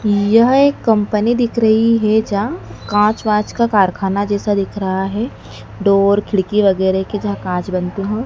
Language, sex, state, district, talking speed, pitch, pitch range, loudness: Hindi, female, Madhya Pradesh, Dhar, 165 wpm, 205 Hz, 195-220 Hz, -16 LUFS